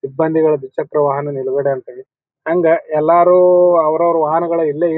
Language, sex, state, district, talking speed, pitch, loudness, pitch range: Kannada, male, Karnataka, Bijapur, 130 wpm, 160 Hz, -14 LUFS, 145-170 Hz